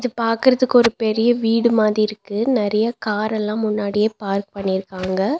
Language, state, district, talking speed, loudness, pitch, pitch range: Tamil, Tamil Nadu, Nilgiris, 135 wpm, -19 LUFS, 215 Hz, 205-235 Hz